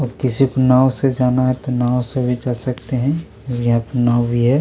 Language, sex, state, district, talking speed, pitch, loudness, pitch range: Hindi, male, Chhattisgarh, Kabirdham, 245 wpm, 125 Hz, -17 LUFS, 120-130 Hz